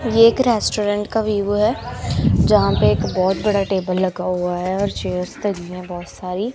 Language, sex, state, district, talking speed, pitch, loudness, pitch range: Hindi, female, Punjab, Kapurthala, 190 wpm, 195 Hz, -19 LUFS, 180-210 Hz